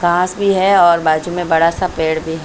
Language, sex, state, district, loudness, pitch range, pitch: Hindi, female, Maharashtra, Mumbai Suburban, -14 LUFS, 160-185 Hz, 175 Hz